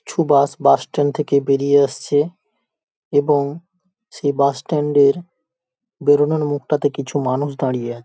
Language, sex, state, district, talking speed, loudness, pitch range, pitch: Bengali, male, West Bengal, Paschim Medinipur, 135 wpm, -18 LUFS, 140-150 Hz, 145 Hz